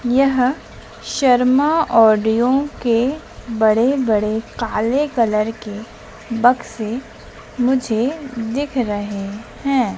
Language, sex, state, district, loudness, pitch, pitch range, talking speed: Hindi, female, Madhya Pradesh, Dhar, -18 LUFS, 240 Hz, 220-265 Hz, 80 wpm